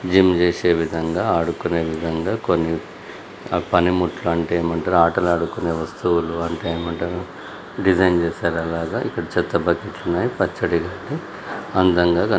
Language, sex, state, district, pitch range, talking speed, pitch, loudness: Telugu, male, Andhra Pradesh, Krishna, 85-90 Hz, 115 wpm, 85 Hz, -21 LUFS